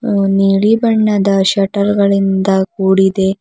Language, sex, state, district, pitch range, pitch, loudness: Kannada, female, Karnataka, Bidar, 195-200 Hz, 195 Hz, -13 LUFS